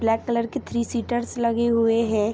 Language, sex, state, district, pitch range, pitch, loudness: Hindi, female, Jharkhand, Sahebganj, 225-235 Hz, 235 Hz, -23 LUFS